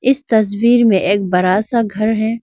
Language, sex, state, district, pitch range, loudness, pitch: Hindi, female, Arunachal Pradesh, Lower Dibang Valley, 200-235 Hz, -14 LUFS, 220 Hz